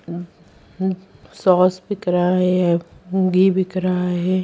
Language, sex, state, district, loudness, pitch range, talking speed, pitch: Hindi, female, Bihar, Bhagalpur, -19 LUFS, 180-185 Hz, 110 wpm, 180 Hz